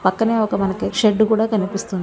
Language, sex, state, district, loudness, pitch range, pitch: Telugu, female, Andhra Pradesh, Visakhapatnam, -18 LUFS, 195-220 Hz, 210 Hz